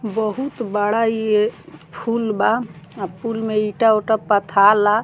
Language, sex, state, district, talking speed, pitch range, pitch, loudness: Bhojpuri, female, Bihar, Muzaffarpur, 120 wpm, 210-225 Hz, 215 Hz, -19 LUFS